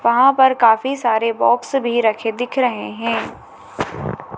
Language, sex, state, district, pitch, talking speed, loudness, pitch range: Hindi, female, Madhya Pradesh, Dhar, 240 Hz, 135 wpm, -17 LUFS, 225-260 Hz